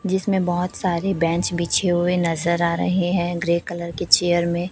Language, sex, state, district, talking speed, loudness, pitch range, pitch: Hindi, female, Chhattisgarh, Raipur, 190 wpm, -21 LUFS, 170-180 Hz, 175 Hz